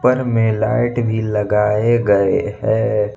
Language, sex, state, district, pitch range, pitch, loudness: Hindi, male, Jharkhand, Ranchi, 105-120 Hz, 110 Hz, -17 LUFS